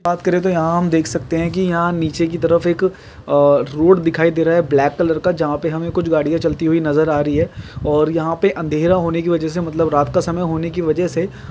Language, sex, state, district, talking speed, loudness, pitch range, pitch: Hindi, male, Andhra Pradesh, Guntur, 260 wpm, -17 LUFS, 155-175 Hz, 165 Hz